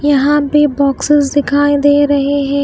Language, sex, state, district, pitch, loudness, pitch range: Hindi, female, Maharashtra, Washim, 285 Hz, -12 LUFS, 280-290 Hz